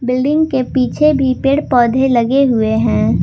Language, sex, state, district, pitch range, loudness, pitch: Hindi, female, Jharkhand, Garhwa, 245-275 Hz, -14 LUFS, 260 Hz